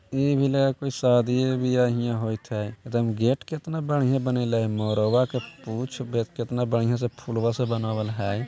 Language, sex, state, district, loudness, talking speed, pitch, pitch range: Magahi, male, Bihar, Jahanabad, -25 LUFS, 190 wpm, 120 Hz, 115-130 Hz